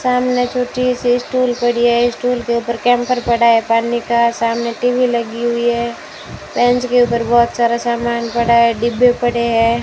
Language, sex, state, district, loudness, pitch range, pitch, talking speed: Hindi, female, Rajasthan, Bikaner, -15 LUFS, 235-245 Hz, 235 Hz, 185 wpm